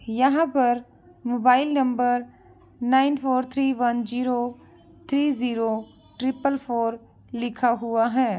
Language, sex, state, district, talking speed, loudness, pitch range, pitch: Hindi, female, Bihar, Begusarai, 115 wpm, -23 LUFS, 240-265 Hz, 245 Hz